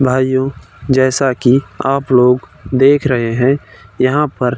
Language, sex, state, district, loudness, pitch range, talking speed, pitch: Hindi, male, Uttar Pradesh, Varanasi, -14 LUFS, 125-135 Hz, 145 wpm, 130 Hz